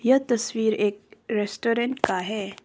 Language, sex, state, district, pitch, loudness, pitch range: Hindi, female, Arunachal Pradesh, Papum Pare, 220 Hz, -25 LUFS, 205-240 Hz